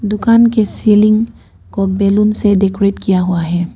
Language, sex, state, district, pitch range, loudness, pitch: Hindi, female, Arunachal Pradesh, Papum Pare, 195-215 Hz, -13 LUFS, 205 Hz